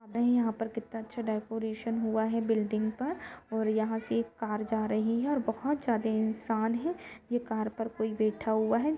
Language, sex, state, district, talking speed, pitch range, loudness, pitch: Hindi, female, Jharkhand, Jamtara, 200 wpm, 220-230 Hz, -32 LUFS, 225 Hz